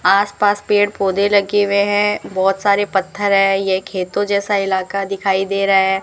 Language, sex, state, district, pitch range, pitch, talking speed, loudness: Hindi, female, Rajasthan, Bikaner, 195-205 Hz, 195 Hz, 180 wpm, -16 LUFS